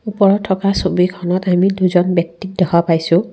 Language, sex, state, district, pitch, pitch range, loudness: Assamese, female, Assam, Kamrup Metropolitan, 185 Hz, 175-195 Hz, -15 LUFS